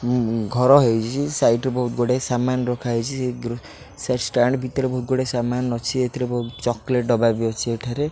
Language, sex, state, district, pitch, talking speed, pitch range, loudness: Odia, male, Odisha, Khordha, 125 Hz, 200 wpm, 120-130 Hz, -21 LUFS